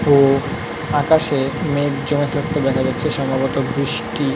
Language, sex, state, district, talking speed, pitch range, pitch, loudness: Bengali, male, West Bengal, North 24 Parganas, 125 wpm, 135-150 Hz, 140 Hz, -18 LUFS